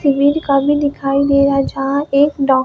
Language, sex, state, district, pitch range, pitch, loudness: Hindi, male, Bihar, Katihar, 275-285 Hz, 280 Hz, -15 LUFS